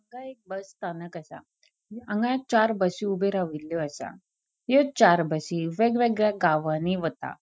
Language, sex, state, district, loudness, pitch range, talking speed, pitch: Konkani, female, Goa, North and South Goa, -25 LUFS, 170-230 Hz, 145 wpm, 195 Hz